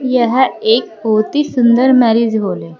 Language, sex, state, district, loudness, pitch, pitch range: Hindi, female, Uttar Pradesh, Saharanpur, -13 LUFS, 235 Hz, 220-255 Hz